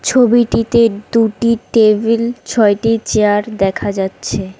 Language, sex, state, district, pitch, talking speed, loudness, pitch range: Bengali, female, West Bengal, Cooch Behar, 220 Hz, 90 wpm, -14 LUFS, 205-230 Hz